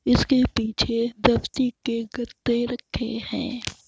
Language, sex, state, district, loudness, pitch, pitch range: Hindi, female, Bihar, Madhepura, -24 LUFS, 240 Hz, 230-255 Hz